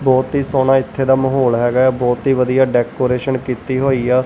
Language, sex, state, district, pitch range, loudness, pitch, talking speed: Punjabi, male, Punjab, Kapurthala, 125-135 Hz, -15 LUFS, 130 Hz, 210 wpm